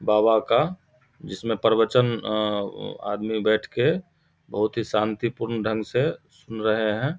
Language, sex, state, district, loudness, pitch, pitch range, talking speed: Maithili, male, Bihar, Samastipur, -24 LUFS, 110 Hz, 110-115 Hz, 150 wpm